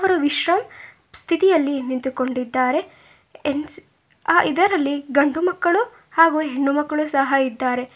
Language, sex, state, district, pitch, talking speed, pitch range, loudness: Kannada, female, Karnataka, Bangalore, 290 Hz, 100 wpm, 270-345 Hz, -20 LUFS